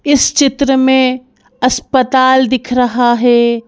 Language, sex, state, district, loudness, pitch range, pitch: Hindi, female, Madhya Pradesh, Bhopal, -11 LUFS, 245-265 Hz, 255 Hz